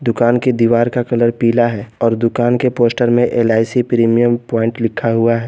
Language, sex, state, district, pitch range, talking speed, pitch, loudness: Hindi, male, Jharkhand, Garhwa, 115-120 Hz, 195 wpm, 120 Hz, -14 LUFS